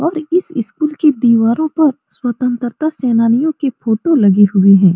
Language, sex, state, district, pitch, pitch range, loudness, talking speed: Hindi, female, Bihar, Supaul, 250 Hz, 230-310 Hz, -14 LUFS, 155 wpm